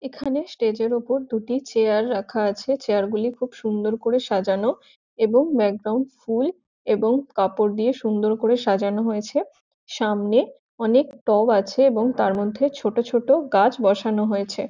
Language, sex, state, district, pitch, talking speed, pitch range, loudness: Bengali, female, West Bengal, Jhargram, 225 Hz, 150 wpm, 210-260 Hz, -22 LUFS